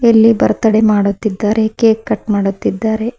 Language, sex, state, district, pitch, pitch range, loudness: Kannada, female, Karnataka, Koppal, 220 Hz, 210-225 Hz, -13 LUFS